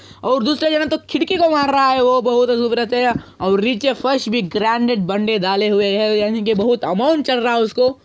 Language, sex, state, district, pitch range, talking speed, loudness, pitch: Hindi, female, Andhra Pradesh, Anantapur, 220-265 Hz, 230 wpm, -17 LUFS, 245 Hz